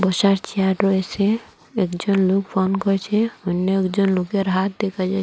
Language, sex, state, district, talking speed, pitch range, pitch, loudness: Bengali, female, Assam, Hailakandi, 150 wpm, 190-200 Hz, 195 Hz, -20 LUFS